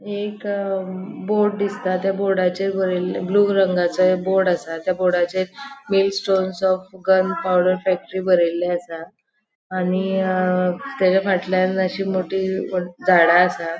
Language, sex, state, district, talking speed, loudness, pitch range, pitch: Konkani, female, Goa, North and South Goa, 125 wpm, -20 LUFS, 180-195 Hz, 185 Hz